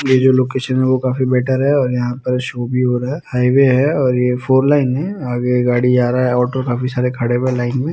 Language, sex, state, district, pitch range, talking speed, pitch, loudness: Hindi, male, Bihar, Muzaffarpur, 125-130 Hz, 270 wpm, 125 Hz, -16 LUFS